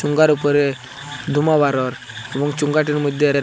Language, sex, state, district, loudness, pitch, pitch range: Bengali, male, Assam, Hailakandi, -18 LUFS, 145 Hz, 140-150 Hz